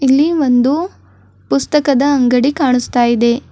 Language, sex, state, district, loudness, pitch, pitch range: Kannada, female, Karnataka, Bidar, -13 LUFS, 255 Hz, 235-285 Hz